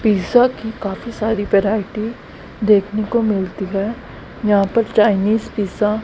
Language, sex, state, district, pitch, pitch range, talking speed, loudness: Hindi, female, Haryana, Rohtak, 215 Hz, 200-225 Hz, 140 wpm, -18 LUFS